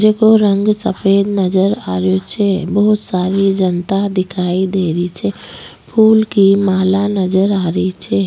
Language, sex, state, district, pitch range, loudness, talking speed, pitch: Rajasthani, female, Rajasthan, Nagaur, 180-200 Hz, -14 LUFS, 150 wpm, 190 Hz